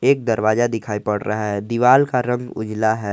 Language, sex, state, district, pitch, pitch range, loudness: Hindi, male, Jharkhand, Garhwa, 110 Hz, 105-125 Hz, -19 LUFS